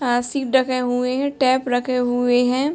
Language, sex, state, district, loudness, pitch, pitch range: Hindi, female, Bihar, Gopalganj, -19 LUFS, 255 Hz, 245-260 Hz